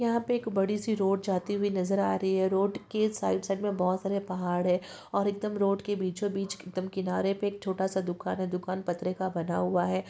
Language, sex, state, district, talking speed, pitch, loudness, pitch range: Hindi, female, Uttarakhand, Tehri Garhwal, 250 wpm, 190 Hz, -30 LUFS, 185-205 Hz